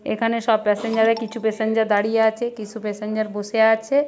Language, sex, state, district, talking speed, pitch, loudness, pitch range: Bengali, female, West Bengal, Purulia, 160 wpm, 220 Hz, -21 LUFS, 215-225 Hz